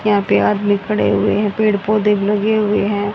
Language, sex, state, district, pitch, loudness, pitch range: Hindi, female, Haryana, Rohtak, 210 Hz, -16 LUFS, 205-210 Hz